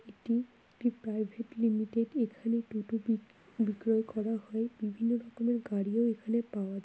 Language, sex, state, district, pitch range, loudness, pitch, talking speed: Bengali, female, West Bengal, Kolkata, 215-235 Hz, -33 LUFS, 225 Hz, 155 wpm